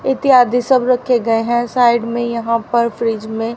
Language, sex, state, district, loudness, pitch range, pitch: Hindi, female, Haryana, Rohtak, -15 LUFS, 230-245 Hz, 235 Hz